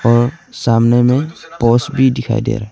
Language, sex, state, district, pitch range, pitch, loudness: Hindi, male, Arunachal Pradesh, Longding, 115-145 Hz, 125 Hz, -14 LUFS